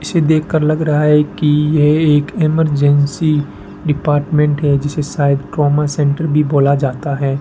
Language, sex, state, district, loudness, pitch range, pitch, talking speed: Hindi, male, Rajasthan, Bikaner, -14 LUFS, 145-150 Hz, 150 Hz, 155 wpm